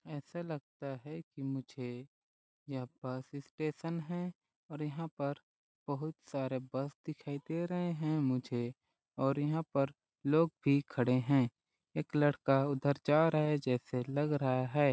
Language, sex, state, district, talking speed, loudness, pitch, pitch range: Hindi, male, Chhattisgarh, Balrampur, 150 wpm, -36 LUFS, 140 Hz, 130-155 Hz